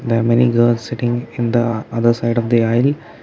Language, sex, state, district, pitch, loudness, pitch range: English, male, Karnataka, Bangalore, 120 Hz, -16 LUFS, 115-120 Hz